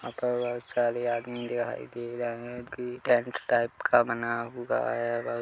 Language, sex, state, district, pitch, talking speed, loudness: Hindi, male, Chhattisgarh, Kabirdham, 120 Hz, 200 wpm, -29 LUFS